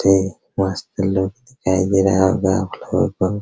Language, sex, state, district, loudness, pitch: Hindi, male, Bihar, Araria, -19 LUFS, 95 Hz